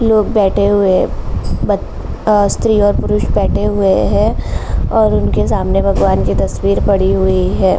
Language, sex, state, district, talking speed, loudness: Hindi, female, Uttar Pradesh, Jalaun, 160 wpm, -14 LUFS